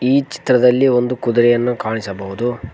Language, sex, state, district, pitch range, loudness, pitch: Kannada, male, Karnataka, Koppal, 120-125 Hz, -16 LUFS, 120 Hz